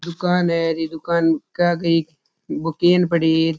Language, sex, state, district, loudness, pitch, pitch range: Rajasthani, male, Rajasthan, Churu, -19 LUFS, 165 Hz, 160-175 Hz